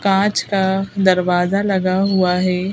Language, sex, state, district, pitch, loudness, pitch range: Hindi, female, Madhya Pradesh, Bhopal, 190 Hz, -17 LUFS, 185-195 Hz